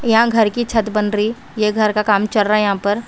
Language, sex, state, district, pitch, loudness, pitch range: Hindi, female, Bihar, Katihar, 215 Hz, -16 LUFS, 210-225 Hz